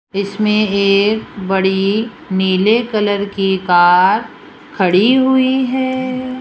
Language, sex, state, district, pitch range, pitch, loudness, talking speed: Hindi, female, Rajasthan, Jaipur, 190-250 Hz, 205 Hz, -14 LUFS, 95 wpm